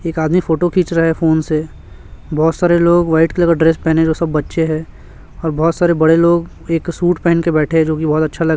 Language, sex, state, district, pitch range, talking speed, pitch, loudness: Hindi, male, Chhattisgarh, Raipur, 160-170 Hz, 260 wpm, 165 Hz, -14 LUFS